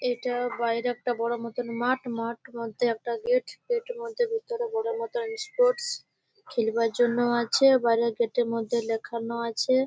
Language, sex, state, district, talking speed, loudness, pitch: Bengali, female, West Bengal, Malda, 160 wpm, -27 LUFS, 245 Hz